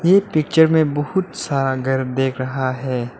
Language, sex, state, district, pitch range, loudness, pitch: Hindi, male, Arunachal Pradesh, Lower Dibang Valley, 130-160 Hz, -19 LUFS, 135 Hz